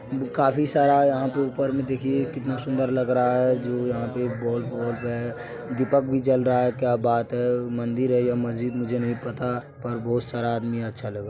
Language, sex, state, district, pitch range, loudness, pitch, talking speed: Maithili, male, Bihar, Supaul, 120-130 Hz, -24 LUFS, 125 Hz, 205 wpm